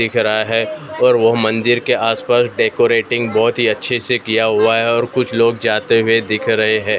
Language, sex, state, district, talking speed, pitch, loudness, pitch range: Hindi, male, Maharashtra, Mumbai Suburban, 205 wpm, 115 Hz, -15 LUFS, 115-125 Hz